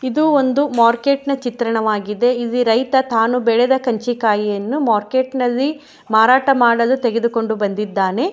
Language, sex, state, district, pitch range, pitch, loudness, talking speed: Kannada, female, Karnataka, Shimoga, 225-265 Hz, 240 Hz, -16 LUFS, 115 wpm